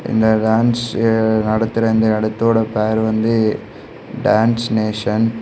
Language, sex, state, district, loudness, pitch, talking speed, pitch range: Tamil, male, Tamil Nadu, Kanyakumari, -16 LUFS, 110 Hz, 110 wpm, 110-115 Hz